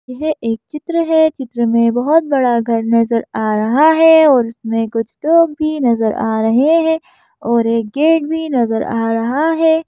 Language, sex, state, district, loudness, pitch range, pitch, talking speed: Hindi, female, Madhya Pradesh, Bhopal, -14 LUFS, 230-320 Hz, 255 Hz, 180 wpm